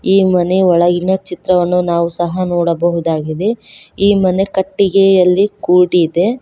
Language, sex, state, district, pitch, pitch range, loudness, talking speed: Kannada, female, Karnataka, Koppal, 180 Hz, 175-195 Hz, -13 LUFS, 105 wpm